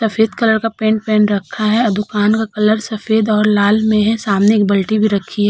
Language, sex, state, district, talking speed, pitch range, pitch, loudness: Hindi, female, Uttar Pradesh, Hamirpur, 240 wpm, 205-220 Hz, 215 Hz, -14 LUFS